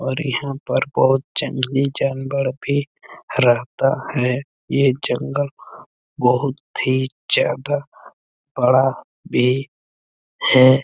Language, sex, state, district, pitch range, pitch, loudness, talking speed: Hindi, male, Chhattisgarh, Bastar, 130-140 Hz, 135 Hz, -19 LUFS, 100 wpm